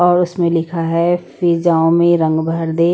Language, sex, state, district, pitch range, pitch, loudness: Hindi, female, Punjab, Pathankot, 165-175 Hz, 170 Hz, -15 LUFS